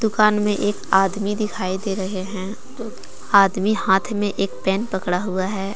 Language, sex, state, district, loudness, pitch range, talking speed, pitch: Hindi, female, Jharkhand, Deoghar, -21 LUFS, 190-210 Hz, 165 wpm, 195 Hz